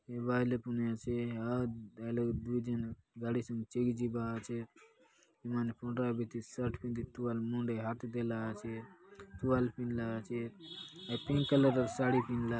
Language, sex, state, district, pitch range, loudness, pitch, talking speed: Halbi, male, Chhattisgarh, Bastar, 115-125 Hz, -37 LUFS, 120 Hz, 160 wpm